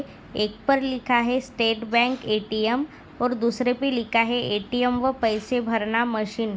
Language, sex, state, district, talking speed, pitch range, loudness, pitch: Hindi, female, Maharashtra, Dhule, 185 wpm, 225-250 Hz, -24 LUFS, 235 Hz